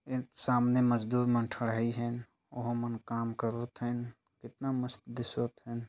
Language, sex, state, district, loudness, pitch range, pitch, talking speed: Chhattisgarhi, male, Chhattisgarh, Jashpur, -33 LUFS, 115-125 Hz, 120 Hz, 155 wpm